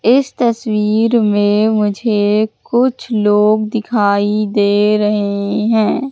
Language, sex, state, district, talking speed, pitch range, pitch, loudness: Hindi, female, Madhya Pradesh, Katni, 100 wpm, 205-225 Hz, 215 Hz, -14 LUFS